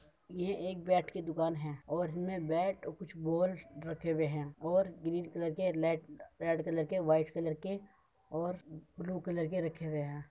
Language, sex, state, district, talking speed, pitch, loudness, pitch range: Hindi, male, Uttar Pradesh, Muzaffarnagar, 180 wpm, 165 Hz, -36 LUFS, 155-180 Hz